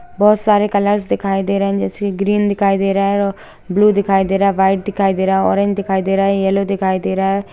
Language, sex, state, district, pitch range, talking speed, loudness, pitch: Hindi, female, Bihar, Saran, 195-200 Hz, 265 wpm, -15 LUFS, 195 Hz